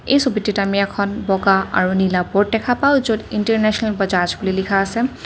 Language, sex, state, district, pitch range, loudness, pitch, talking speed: Assamese, female, Assam, Kamrup Metropolitan, 195-225 Hz, -18 LUFS, 200 Hz, 180 wpm